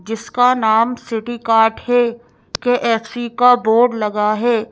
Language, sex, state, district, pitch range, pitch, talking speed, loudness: Hindi, female, Madhya Pradesh, Bhopal, 225-245 Hz, 235 Hz, 150 wpm, -16 LUFS